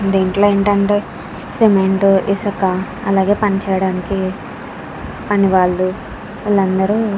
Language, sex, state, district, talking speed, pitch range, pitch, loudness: Telugu, female, Andhra Pradesh, Krishna, 90 wpm, 190-205 Hz, 195 Hz, -15 LUFS